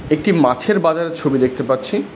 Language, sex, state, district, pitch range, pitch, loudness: Bengali, male, West Bengal, Alipurduar, 130-165 Hz, 155 Hz, -17 LUFS